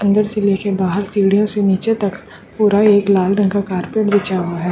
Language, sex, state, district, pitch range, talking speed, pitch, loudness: Hindi, female, Chhattisgarh, Bastar, 190-205 Hz, 215 wpm, 200 Hz, -16 LUFS